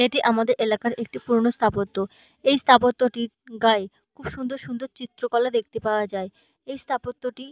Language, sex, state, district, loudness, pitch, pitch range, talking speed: Bengali, female, West Bengal, Malda, -23 LUFS, 235 Hz, 220-250 Hz, 160 wpm